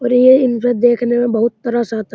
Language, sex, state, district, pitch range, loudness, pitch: Hindi, male, Uttar Pradesh, Muzaffarnagar, 235-245 Hz, -14 LUFS, 240 Hz